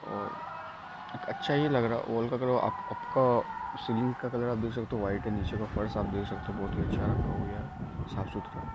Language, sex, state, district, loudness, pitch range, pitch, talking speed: Hindi, male, Bihar, Gopalganj, -32 LUFS, 105-125 Hz, 115 Hz, 190 wpm